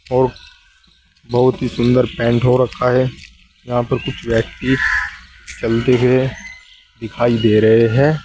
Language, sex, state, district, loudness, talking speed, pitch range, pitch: Hindi, male, Uttar Pradesh, Saharanpur, -16 LUFS, 130 wpm, 120-130 Hz, 125 Hz